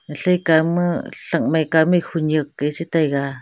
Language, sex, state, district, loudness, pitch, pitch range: Wancho, female, Arunachal Pradesh, Longding, -19 LUFS, 160 Hz, 150-170 Hz